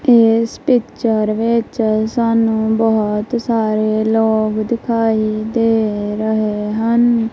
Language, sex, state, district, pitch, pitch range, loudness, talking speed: Punjabi, female, Punjab, Kapurthala, 225 Hz, 215-230 Hz, -16 LUFS, 90 wpm